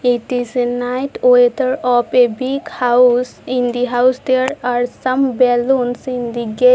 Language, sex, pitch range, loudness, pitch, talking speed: English, female, 245-255 Hz, -16 LUFS, 250 Hz, 170 wpm